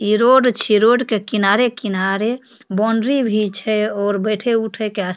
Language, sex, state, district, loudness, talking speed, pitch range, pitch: Maithili, female, Bihar, Supaul, -17 LUFS, 175 wpm, 205-240 Hz, 215 Hz